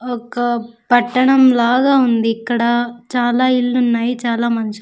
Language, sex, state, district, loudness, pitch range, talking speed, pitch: Telugu, female, Andhra Pradesh, Sri Satya Sai, -15 LUFS, 235-250 Hz, 135 wpm, 240 Hz